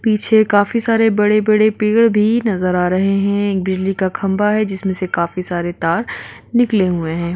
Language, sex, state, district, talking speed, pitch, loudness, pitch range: Hindi, female, Bihar, Gopalganj, 185 wpm, 200 Hz, -16 LUFS, 185-215 Hz